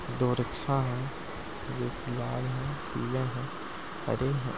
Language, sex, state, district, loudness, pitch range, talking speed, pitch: Angika, male, Bihar, Madhepura, -32 LUFS, 125-140 Hz, 130 wpm, 130 Hz